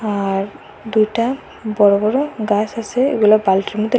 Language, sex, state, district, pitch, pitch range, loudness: Bengali, female, Assam, Hailakandi, 215 Hz, 205-230 Hz, -17 LUFS